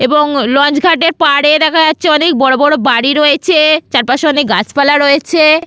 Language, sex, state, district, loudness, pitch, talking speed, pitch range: Bengali, female, West Bengal, Paschim Medinipur, -9 LUFS, 295 Hz, 160 wpm, 280-315 Hz